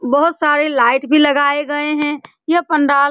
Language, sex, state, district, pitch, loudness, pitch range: Hindi, female, Bihar, Saran, 295 Hz, -15 LUFS, 285-300 Hz